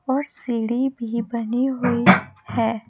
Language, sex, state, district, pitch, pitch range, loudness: Hindi, female, Chhattisgarh, Raipur, 235 Hz, 230-260 Hz, -22 LUFS